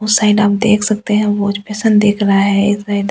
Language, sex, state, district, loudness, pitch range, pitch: Hindi, female, Delhi, New Delhi, -13 LUFS, 205-210 Hz, 205 Hz